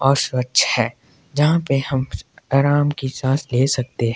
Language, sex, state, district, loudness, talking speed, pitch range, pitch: Hindi, male, Himachal Pradesh, Shimla, -19 LUFS, 160 wpm, 125-140 Hz, 135 Hz